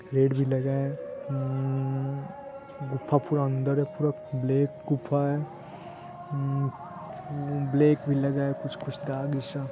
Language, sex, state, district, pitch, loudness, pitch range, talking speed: Hindi, male, Bihar, Saran, 140 Hz, -28 LUFS, 135-150 Hz, 140 wpm